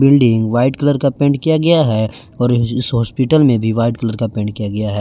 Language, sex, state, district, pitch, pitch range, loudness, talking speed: Hindi, male, Jharkhand, Garhwa, 120 Hz, 110-140 Hz, -15 LUFS, 240 wpm